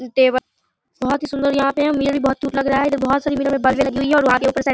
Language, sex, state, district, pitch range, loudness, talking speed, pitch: Hindi, female, Bihar, Darbhanga, 270-280 Hz, -18 LUFS, 115 wpm, 275 Hz